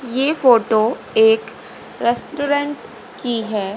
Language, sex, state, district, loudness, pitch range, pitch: Hindi, female, Haryana, Rohtak, -17 LUFS, 220-275 Hz, 240 Hz